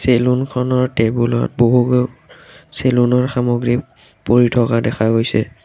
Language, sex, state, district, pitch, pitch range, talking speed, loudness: Assamese, male, Assam, Kamrup Metropolitan, 120 Hz, 115-125 Hz, 105 wpm, -16 LUFS